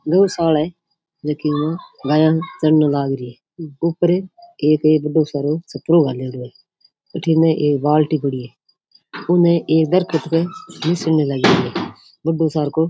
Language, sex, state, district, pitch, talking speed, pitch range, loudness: Rajasthani, female, Rajasthan, Nagaur, 160 Hz, 130 wpm, 150-170 Hz, -18 LUFS